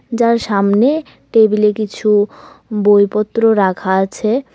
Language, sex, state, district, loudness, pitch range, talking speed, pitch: Bengali, female, Tripura, West Tripura, -14 LUFS, 205-230 Hz, 90 wpm, 215 Hz